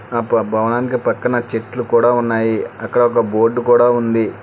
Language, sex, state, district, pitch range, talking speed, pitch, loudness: Telugu, male, Telangana, Hyderabad, 115-120 Hz, 150 wpm, 120 Hz, -16 LUFS